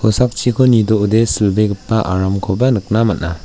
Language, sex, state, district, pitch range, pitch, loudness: Garo, male, Meghalaya, West Garo Hills, 100-115 Hz, 110 Hz, -15 LUFS